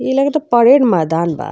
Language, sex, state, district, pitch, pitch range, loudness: Bhojpuri, female, Uttar Pradesh, Gorakhpur, 240 Hz, 165-270 Hz, -13 LUFS